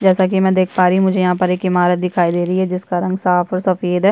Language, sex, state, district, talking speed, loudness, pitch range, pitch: Hindi, female, Chhattisgarh, Bastar, 260 wpm, -16 LUFS, 180-185 Hz, 185 Hz